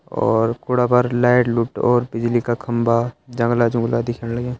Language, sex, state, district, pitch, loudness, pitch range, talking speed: Hindi, male, Uttarakhand, Uttarkashi, 120 Hz, -19 LUFS, 115-120 Hz, 170 wpm